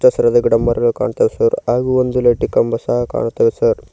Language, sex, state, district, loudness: Kannada, male, Karnataka, Koppal, -15 LUFS